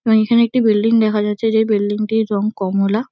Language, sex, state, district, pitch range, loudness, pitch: Bengali, female, West Bengal, Kolkata, 210-225 Hz, -16 LUFS, 215 Hz